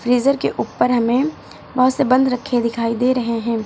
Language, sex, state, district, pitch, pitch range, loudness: Hindi, female, Uttar Pradesh, Lucknow, 250 Hz, 235-255 Hz, -18 LUFS